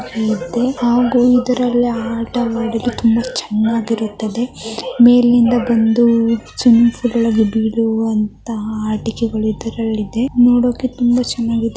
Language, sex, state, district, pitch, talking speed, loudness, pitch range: Kannada, male, Karnataka, Mysore, 230 Hz, 90 wpm, -15 LUFS, 225-245 Hz